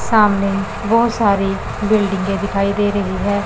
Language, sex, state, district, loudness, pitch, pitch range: Hindi, male, Punjab, Pathankot, -17 LUFS, 200 Hz, 195-210 Hz